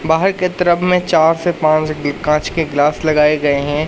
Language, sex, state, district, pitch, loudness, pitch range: Hindi, male, Madhya Pradesh, Katni, 155 Hz, -15 LUFS, 150-175 Hz